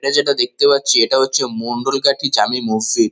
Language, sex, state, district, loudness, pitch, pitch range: Bengali, male, West Bengal, North 24 Parganas, -15 LUFS, 135 Hz, 120-195 Hz